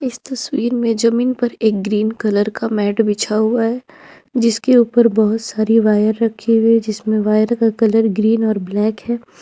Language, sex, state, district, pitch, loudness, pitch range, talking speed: Hindi, female, Jharkhand, Ranchi, 225 Hz, -16 LUFS, 215-235 Hz, 185 wpm